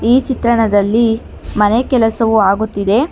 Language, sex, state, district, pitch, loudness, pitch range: Kannada, female, Karnataka, Bangalore, 225 Hz, -13 LUFS, 210-235 Hz